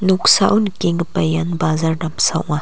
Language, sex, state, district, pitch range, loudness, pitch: Garo, female, Meghalaya, West Garo Hills, 160-190 Hz, -16 LUFS, 170 Hz